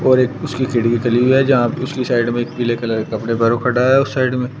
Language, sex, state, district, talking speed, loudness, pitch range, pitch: Hindi, male, Uttar Pradesh, Shamli, 315 wpm, -16 LUFS, 120-130 Hz, 125 Hz